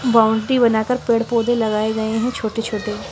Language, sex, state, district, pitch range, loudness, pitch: Hindi, female, Bihar, West Champaran, 220-240 Hz, -19 LUFS, 225 Hz